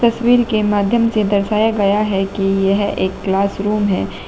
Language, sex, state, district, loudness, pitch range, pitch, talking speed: Hindi, female, Uttar Pradesh, Shamli, -16 LUFS, 195-215 Hz, 205 Hz, 180 wpm